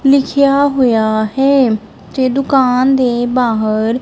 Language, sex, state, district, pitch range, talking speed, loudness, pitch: Punjabi, female, Punjab, Kapurthala, 230-270 Hz, 105 wpm, -13 LUFS, 255 Hz